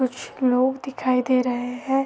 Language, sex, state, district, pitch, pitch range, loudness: Hindi, female, Uttar Pradesh, Varanasi, 255 Hz, 250-265 Hz, -23 LUFS